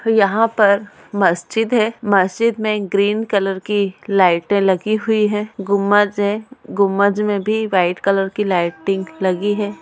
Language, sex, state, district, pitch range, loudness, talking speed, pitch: Hindi, female, Bihar, Bhagalpur, 195-210 Hz, -17 LUFS, 145 wpm, 205 Hz